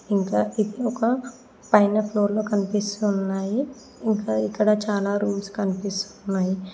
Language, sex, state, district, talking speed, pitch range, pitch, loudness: Telugu, female, Telangana, Mahabubabad, 105 wpm, 195-215 Hz, 205 Hz, -24 LUFS